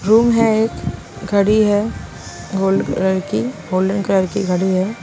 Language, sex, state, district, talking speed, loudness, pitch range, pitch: Hindi, female, Punjab, Pathankot, 145 wpm, -17 LUFS, 190-215 Hz, 200 Hz